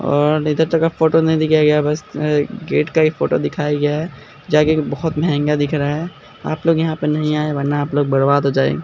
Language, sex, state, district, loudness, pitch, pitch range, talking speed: Hindi, male, Bihar, Katihar, -17 LUFS, 150 Hz, 145-160 Hz, 230 wpm